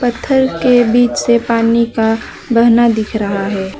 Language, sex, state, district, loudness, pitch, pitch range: Hindi, female, West Bengal, Alipurduar, -13 LUFS, 235 Hz, 220-245 Hz